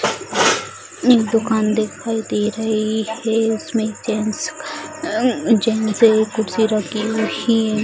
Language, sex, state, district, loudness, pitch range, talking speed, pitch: Hindi, female, Bihar, Bhagalpur, -18 LUFS, 220-245 Hz, 130 wpm, 225 Hz